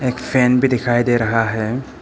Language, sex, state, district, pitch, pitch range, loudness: Hindi, male, Arunachal Pradesh, Papum Pare, 120 Hz, 115-125 Hz, -17 LUFS